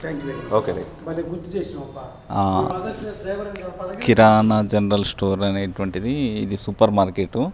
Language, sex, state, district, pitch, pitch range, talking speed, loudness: Telugu, male, Telangana, Nalgonda, 120 Hz, 100-165 Hz, 65 wpm, -21 LUFS